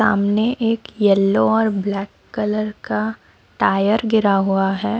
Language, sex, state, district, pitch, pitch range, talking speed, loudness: Hindi, female, Odisha, Sambalpur, 200 Hz, 195-220 Hz, 130 wpm, -18 LUFS